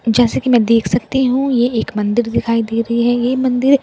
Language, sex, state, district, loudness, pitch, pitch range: Hindi, female, Bihar, Katihar, -15 LUFS, 240 Hz, 230-250 Hz